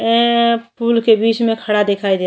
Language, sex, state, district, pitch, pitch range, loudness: Bhojpuri, female, Uttar Pradesh, Ghazipur, 225 Hz, 210-235 Hz, -15 LUFS